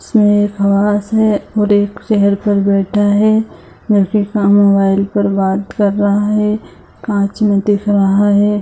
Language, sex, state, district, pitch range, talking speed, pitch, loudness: Hindi, female, Bihar, Saharsa, 200-210 Hz, 160 wpm, 205 Hz, -13 LUFS